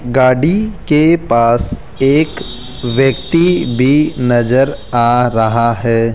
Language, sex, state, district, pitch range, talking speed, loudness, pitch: Hindi, male, Rajasthan, Jaipur, 120-150 Hz, 95 wpm, -13 LUFS, 125 Hz